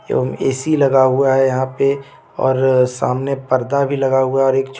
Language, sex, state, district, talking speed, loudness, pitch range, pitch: Hindi, male, Jharkhand, Deoghar, 190 wpm, -16 LUFS, 130-135 Hz, 135 Hz